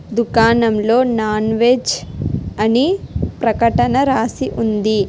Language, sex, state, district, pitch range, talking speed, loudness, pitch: Telugu, female, Telangana, Hyderabad, 215-240 Hz, 85 wpm, -16 LUFS, 230 Hz